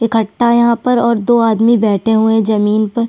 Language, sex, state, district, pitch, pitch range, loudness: Hindi, female, Chhattisgarh, Sukma, 225 Hz, 215-235 Hz, -12 LUFS